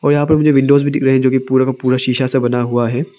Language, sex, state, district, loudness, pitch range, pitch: Hindi, male, Arunachal Pradesh, Papum Pare, -14 LUFS, 130-140 Hz, 130 Hz